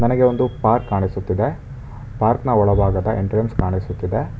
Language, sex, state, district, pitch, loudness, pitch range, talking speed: Kannada, male, Karnataka, Bangalore, 110 Hz, -19 LUFS, 100-120 Hz, 120 wpm